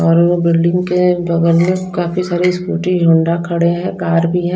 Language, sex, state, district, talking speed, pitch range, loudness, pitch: Hindi, female, Odisha, Nuapada, 195 wpm, 170-180 Hz, -14 LUFS, 175 Hz